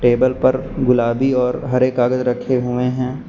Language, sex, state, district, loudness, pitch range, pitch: Hindi, male, Uttar Pradesh, Lucknow, -17 LUFS, 125-130 Hz, 125 Hz